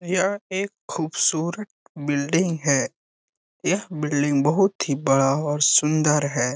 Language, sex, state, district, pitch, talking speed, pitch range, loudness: Hindi, male, Bihar, Lakhisarai, 155 Hz, 120 wpm, 145-185 Hz, -22 LUFS